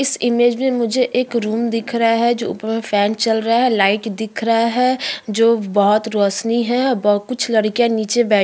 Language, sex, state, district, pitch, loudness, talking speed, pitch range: Hindi, female, Uttarakhand, Tehri Garhwal, 230 Hz, -17 LUFS, 215 wpm, 215-240 Hz